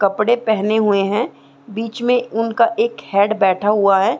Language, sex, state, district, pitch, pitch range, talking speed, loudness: Hindi, female, Bihar, Saran, 215 Hz, 200-235 Hz, 170 wpm, -17 LUFS